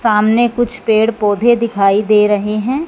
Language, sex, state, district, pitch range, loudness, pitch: Hindi, female, Punjab, Fazilka, 210-240 Hz, -13 LUFS, 220 Hz